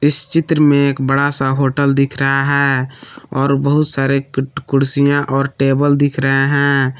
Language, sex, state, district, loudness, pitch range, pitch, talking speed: Hindi, male, Jharkhand, Palamu, -14 LUFS, 135-145 Hz, 140 Hz, 165 wpm